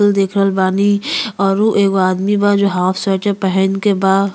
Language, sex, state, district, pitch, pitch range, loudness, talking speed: Bhojpuri, female, Uttar Pradesh, Ghazipur, 195 Hz, 190-205 Hz, -15 LUFS, 165 wpm